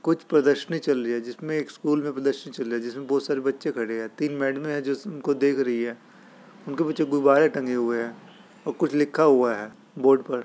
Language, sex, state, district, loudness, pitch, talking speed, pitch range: Hindi, male, Uttar Pradesh, Etah, -25 LUFS, 140 Hz, 235 wpm, 125-155 Hz